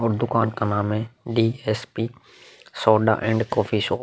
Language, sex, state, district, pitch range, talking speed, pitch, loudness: Hindi, male, Uttar Pradesh, Muzaffarnagar, 110-115 Hz, 165 wpm, 115 Hz, -23 LUFS